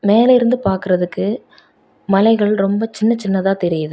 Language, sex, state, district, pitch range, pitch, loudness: Tamil, female, Tamil Nadu, Kanyakumari, 190-225 Hz, 200 Hz, -16 LUFS